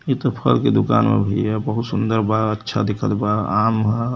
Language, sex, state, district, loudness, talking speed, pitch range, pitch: Hindi, male, Uttar Pradesh, Varanasi, -19 LUFS, 230 wpm, 105-115 Hz, 110 Hz